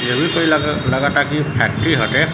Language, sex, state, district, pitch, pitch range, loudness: Hindi, male, Bihar, Gopalganj, 145 Hz, 130-155 Hz, -16 LUFS